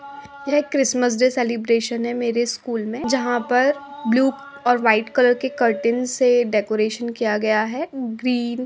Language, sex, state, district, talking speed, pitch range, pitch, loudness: Hindi, female, Uttar Pradesh, Budaun, 160 wpm, 230-265 Hz, 245 Hz, -20 LUFS